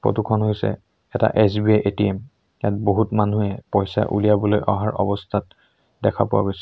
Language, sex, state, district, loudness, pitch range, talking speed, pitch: Assamese, male, Assam, Sonitpur, -21 LUFS, 100-110 Hz, 145 wpm, 105 Hz